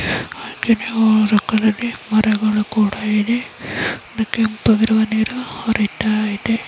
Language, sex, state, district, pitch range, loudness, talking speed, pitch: Kannada, female, Karnataka, Chamarajanagar, 215-225 Hz, -18 LUFS, 90 wpm, 220 Hz